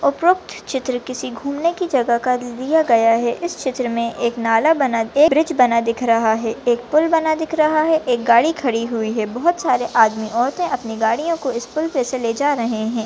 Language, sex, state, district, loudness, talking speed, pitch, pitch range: Hindi, female, Maharashtra, Chandrapur, -18 LUFS, 220 wpm, 250 Hz, 230-310 Hz